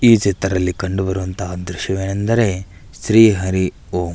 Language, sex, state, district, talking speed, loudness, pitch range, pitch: Kannada, male, Karnataka, Belgaum, 100 wpm, -18 LUFS, 90-100 Hz, 95 Hz